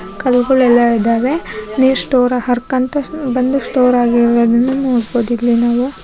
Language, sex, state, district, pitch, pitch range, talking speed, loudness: Kannada, female, Karnataka, Shimoga, 245 Hz, 235-260 Hz, 120 wpm, -14 LUFS